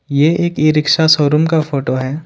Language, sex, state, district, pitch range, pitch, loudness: Hindi, male, Jharkhand, Ranchi, 145-160 Hz, 150 Hz, -13 LUFS